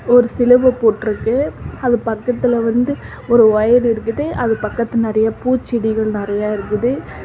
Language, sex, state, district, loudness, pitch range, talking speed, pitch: Tamil, female, Tamil Nadu, Namakkal, -16 LUFS, 220-245 Hz, 115 wpm, 235 Hz